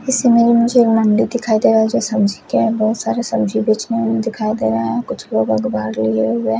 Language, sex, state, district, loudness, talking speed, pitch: Hindi, male, Odisha, Khordha, -16 LUFS, 225 wpm, 215 Hz